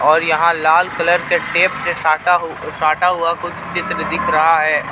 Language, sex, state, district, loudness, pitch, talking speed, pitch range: Hindi, male, Jharkhand, Ranchi, -15 LUFS, 170 Hz, 230 wpm, 160-175 Hz